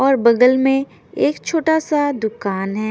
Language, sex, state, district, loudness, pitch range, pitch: Hindi, female, Bihar, Patna, -17 LUFS, 220-290 Hz, 265 Hz